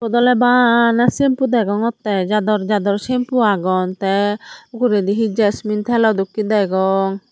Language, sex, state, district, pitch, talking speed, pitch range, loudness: Chakma, female, Tripura, Dhalai, 215 Hz, 130 wpm, 200-235 Hz, -16 LUFS